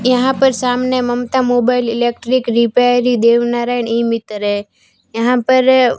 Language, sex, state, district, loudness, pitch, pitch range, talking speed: Hindi, female, Rajasthan, Barmer, -14 LUFS, 245 Hz, 235-255 Hz, 130 wpm